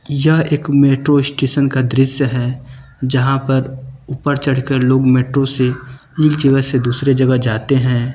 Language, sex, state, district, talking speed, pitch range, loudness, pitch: Hindi, male, Uttar Pradesh, Lucknow, 155 wpm, 130-140 Hz, -15 LUFS, 135 Hz